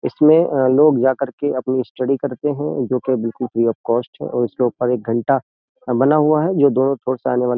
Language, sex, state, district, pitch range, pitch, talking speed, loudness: Hindi, male, Uttar Pradesh, Jyotiba Phule Nagar, 125-140 Hz, 130 Hz, 235 wpm, -18 LUFS